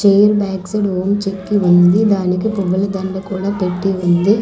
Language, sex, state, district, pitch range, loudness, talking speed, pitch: Telugu, female, Andhra Pradesh, Manyam, 185-205 Hz, -15 LUFS, 150 wpm, 195 Hz